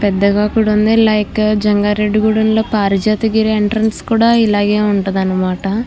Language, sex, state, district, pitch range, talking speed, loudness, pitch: Telugu, female, Andhra Pradesh, Krishna, 205-220 Hz, 125 wpm, -14 LUFS, 210 Hz